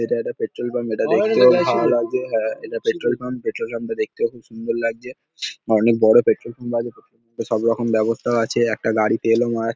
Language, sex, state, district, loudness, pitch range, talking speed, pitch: Bengali, male, West Bengal, Paschim Medinipur, -20 LUFS, 115-125 Hz, 235 wpm, 120 Hz